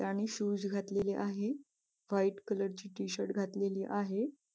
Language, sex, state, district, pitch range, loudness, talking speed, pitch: Marathi, female, Maharashtra, Nagpur, 200-210 Hz, -36 LUFS, 130 wpm, 200 Hz